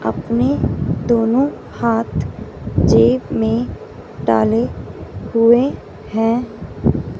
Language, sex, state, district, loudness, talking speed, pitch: Hindi, female, Punjab, Fazilka, -17 LUFS, 65 wpm, 225 Hz